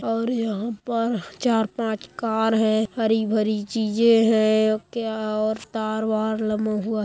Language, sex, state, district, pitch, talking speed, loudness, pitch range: Hindi, female, Chhattisgarh, Kabirdham, 220 Hz, 145 wpm, -23 LUFS, 215-225 Hz